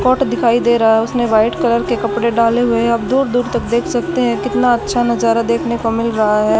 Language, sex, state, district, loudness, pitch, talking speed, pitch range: Hindi, female, Haryana, Charkhi Dadri, -15 LUFS, 235 Hz, 255 wpm, 225-240 Hz